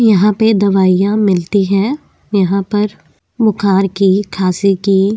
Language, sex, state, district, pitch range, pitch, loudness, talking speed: Hindi, female, Uttarakhand, Tehri Garhwal, 195-210 Hz, 200 Hz, -13 LUFS, 140 wpm